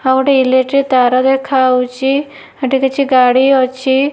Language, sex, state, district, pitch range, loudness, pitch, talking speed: Odia, female, Odisha, Nuapada, 255-275 Hz, -12 LUFS, 265 Hz, 130 wpm